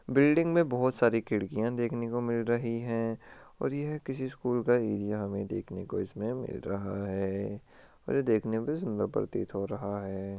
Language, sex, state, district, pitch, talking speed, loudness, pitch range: Hindi, male, Rajasthan, Churu, 115 Hz, 190 wpm, -31 LUFS, 100-125 Hz